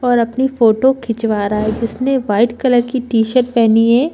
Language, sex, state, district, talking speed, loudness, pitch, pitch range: Hindi, female, Chhattisgarh, Bilaspur, 190 wpm, -15 LUFS, 235 Hz, 225-255 Hz